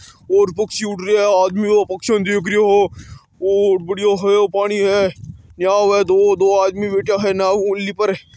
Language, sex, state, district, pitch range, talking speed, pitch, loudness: Marwari, male, Rajasthan, Nagaur, 195-205 Hz, 200 wpm, 200 Hz, -16 LUFS